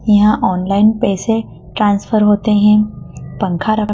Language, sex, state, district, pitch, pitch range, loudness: Hindi, female, Madhya Pradesh, Dhar, 210 Hz, 195-215 Hz, -14 LUFS